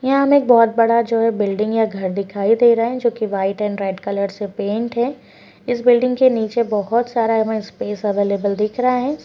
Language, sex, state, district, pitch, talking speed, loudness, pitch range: Hindi, female, Uttarakhand, Uttarkashi, 225 Hz, 220 wpm, -18 LUFS, 205-240 Hz